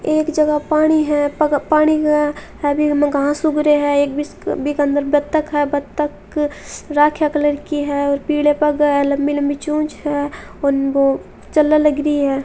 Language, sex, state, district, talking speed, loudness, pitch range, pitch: Hindi, female, Rajasthan, Churu, 180 wpm, -17 LUFS, 285-300 Hz, 295 Hz